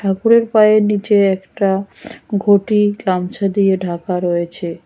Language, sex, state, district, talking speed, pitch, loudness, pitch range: Bengali, female, West Bengal, Cooch Behar, 110 wpm, 195 Hz, -15 LUFS, 185-210 Hz